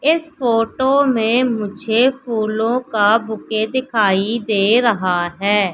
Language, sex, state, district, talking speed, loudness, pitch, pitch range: Hindi, female, Madhya Pradesh, Katni, 115 wpm, -17 LUFS, 225 Hz, 210-250 Hz